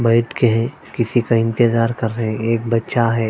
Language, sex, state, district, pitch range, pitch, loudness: Hindi, female, Punjab, Fazilka, 115-120 Hz, 115 Hz, -18 LUFS